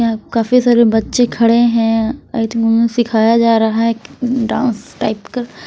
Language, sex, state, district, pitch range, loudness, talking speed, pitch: Hindi, female, Punjab, Kapurthala, 225-240 Hz, -14 LUFS, 170 wpm, 230 Hz